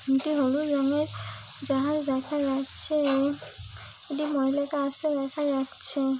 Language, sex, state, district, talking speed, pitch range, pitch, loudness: Bengali, female, West Bengal, Dakshin Dinajpur, 115 wpm, 270-295 Hz, 280 Hz, -28 LUFS